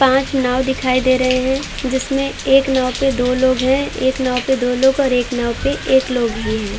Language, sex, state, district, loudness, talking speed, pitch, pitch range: Hindi, female, Uttar Pradesh, Varanasi, -16 LUFS, 230 wpm, 260 Hz, 250-265 Hz